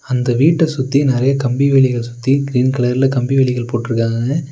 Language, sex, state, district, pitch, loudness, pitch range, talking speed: Tamil, male, Tamil Nadu, Nilgiris, 130 Hz, -15 LUFS, 125-135 Hz, 160 wpm